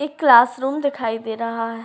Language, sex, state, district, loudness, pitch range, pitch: Hindi, female, Uttarakhand, Uttarkashi, -18 LUFS, 230-275 Hz, 235 Hz